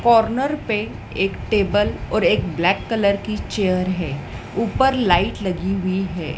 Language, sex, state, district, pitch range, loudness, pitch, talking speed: Hindi, female, Madhya Pradesh, Dhar, 185-225 Hz, -20 LUFS, 200 Hz, 150 wpm